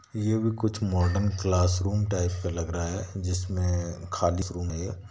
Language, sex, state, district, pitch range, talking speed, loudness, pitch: Hindi, male, Bihar, Sitamarhi, 90-100 Hz, 165 wpm, -28 LUFS, 90 Hz